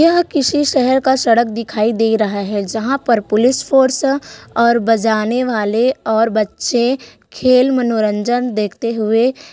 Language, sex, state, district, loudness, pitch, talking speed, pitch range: Hindi, female, Chhattisgarh, Korba, -15 LUFS, 235 Hz, 140 wpm, 220-265 Hz